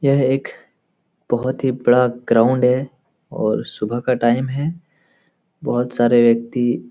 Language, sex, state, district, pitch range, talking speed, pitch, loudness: Hindi, male, Bihar, Jahanabad, 120-130 Hz, 145 wpm, 125 Hz, -18 LUFS